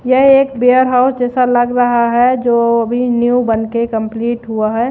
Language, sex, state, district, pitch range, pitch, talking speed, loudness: Hindi, female, Odisha, Malkangiri, 235-250 Hz, 240 Hz, 195 wpm, -13 LUFS